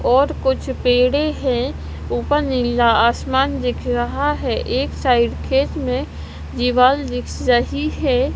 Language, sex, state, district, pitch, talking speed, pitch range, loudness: Hindi, female, Punjab, Kapurthala, 250 Hz, 130 wpm, 240-270 Hz, -18 LUFS